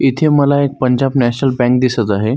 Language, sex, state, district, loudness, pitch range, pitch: Marathi, male, Maharashtra, Solapur, -14 LUFS, 120-140 Hz, 130 Hz